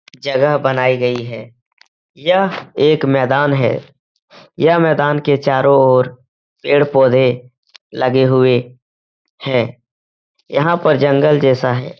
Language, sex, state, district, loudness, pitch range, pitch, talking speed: Hindi, male, Uttar Pradesh, Etah, -14 LUFS, 125-145 Hz, 130 Hz, 110 wpm